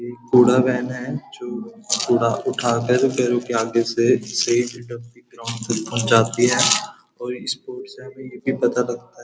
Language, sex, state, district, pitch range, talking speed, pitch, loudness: Hindi, male, Uttar Pradesh, Muzaffarnagar, 120-125 Hz, 115 wpm, 120 Hz, -20 LUFS